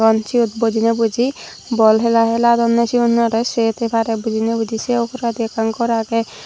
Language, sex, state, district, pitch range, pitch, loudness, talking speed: Chakma, female, Tripura, Dhalai, 225-235 Hz, 230 Hz, -17 LUFS, 165 wpm